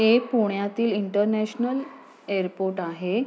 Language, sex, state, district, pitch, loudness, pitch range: Marathi, female, Maharashtra, Pune, 215 Hz, -25 LUFS, 195-240 Hz